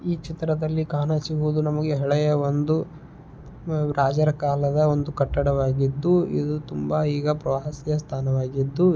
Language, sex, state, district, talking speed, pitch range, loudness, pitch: Kannada, male, Karnataka, Belgaum, 100 wpm, 140-155 Hz, -24 LUFS, 150 Hz